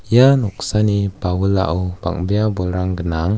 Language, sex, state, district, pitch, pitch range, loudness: Garo, male, Meghalaya, West Garo Hills, 95 Hz, 90-105 Hz, -18 LUFS